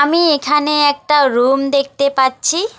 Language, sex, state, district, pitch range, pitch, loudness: Bengali, female, West Bengal, Alipurduar, 275-300 Hz, 285 Hz, -14 LUFS